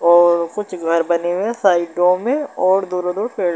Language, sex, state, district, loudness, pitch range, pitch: Hindi, male, Bihar, Darbhanga, -17 LUFS, 170-195 Hz, 180 Hz